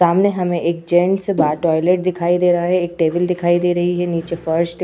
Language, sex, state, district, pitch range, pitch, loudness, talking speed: Hindi, female, Uttar Pradesh, Etah, 170-180 Hz, 175 Hz, -17 LUFS, 250 wpm